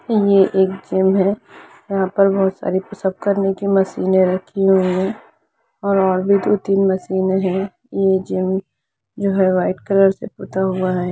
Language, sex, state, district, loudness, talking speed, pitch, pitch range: Hindi, female, Jharkhand, Jamtara, -18 LUFS, 160 wpm, 190 Hz, 190-195 Hz